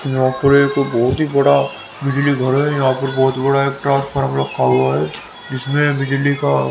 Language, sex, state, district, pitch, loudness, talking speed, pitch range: Hindi, male, Haryana, Rohtak, 140 Hz, -16 LUFS, 180 wpm, 130-140 Hz